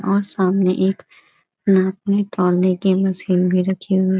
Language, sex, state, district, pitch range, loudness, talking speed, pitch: Hindi, female, Bihar, Gaya, 185-195 Hz, -18 LUFS, 130 wpm, 190 Hz